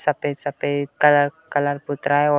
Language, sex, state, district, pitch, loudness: Hindi, male, Uttar Pradesh, Deoria, 145 Hz, -21 LUFS